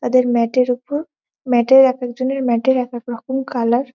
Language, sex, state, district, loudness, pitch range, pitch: Bengali, female, West Bengal, Malda, -17 LUFS, 240-265 Hz, 255 Hz